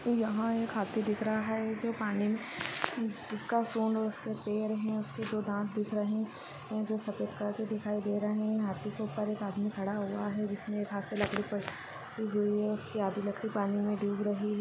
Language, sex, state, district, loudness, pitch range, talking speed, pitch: Hindi, female, Uttar Pradesh, Jyotiba Phule Nagar, -34 LUFS, 205-220 Hz, 220 wpm, 210 Hz